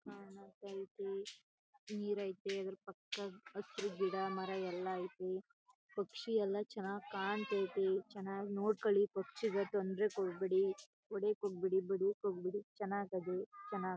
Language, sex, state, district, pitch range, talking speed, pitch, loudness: Kannada, female, Karnataka, Chamarajanagar, 190-205 Hz, 105 wpm, 200 Hz, -40 LUFS